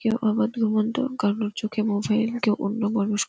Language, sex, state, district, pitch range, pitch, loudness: Bengali, female, West Bengal, Kolkata, 210-225 Hz, 215 Hz, -24 LUFS